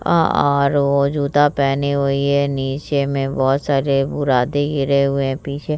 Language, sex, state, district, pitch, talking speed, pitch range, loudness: Hindi, female, Bihar, Vaishali, 140 Hz, 165 wpm, 135-140 Hz, -18 LUFS